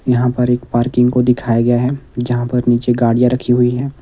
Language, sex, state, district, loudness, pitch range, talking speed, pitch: Hindi, male, Himachal Pradesh, Shimla, -15 LUFS, 120-125 Hz, 225 wpm, 125 Hz